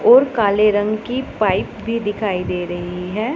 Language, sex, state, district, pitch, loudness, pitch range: Hindi, female, Punjab, Pathankot, 215 Hz, -19 LUFS, 190-230 Hz